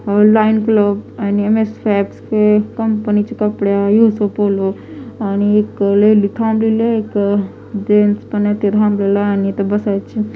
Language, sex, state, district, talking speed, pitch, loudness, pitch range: Marathi, female, Maharashtra, Washim, 150 wpm, 210 Hz, -15 LUFS, 200-215 Hz